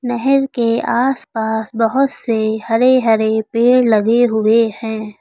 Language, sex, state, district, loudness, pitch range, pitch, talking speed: Hindi, female, Uttar Pradesh, Lucknow, -15 LUFS, 220-245 Hz, 230 Hz, 125 wpm